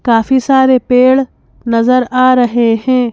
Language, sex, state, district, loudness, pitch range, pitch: Hindi, female, Madhya Pradesh, Bhopal, -11 LUFS, 240-260 Hz, 250 Hz